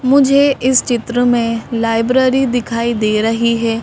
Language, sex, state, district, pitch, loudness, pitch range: Hindi, female, Madhya Pradesh, Bhopal, 235 Hz, -14 LUFS, 230-260 Hz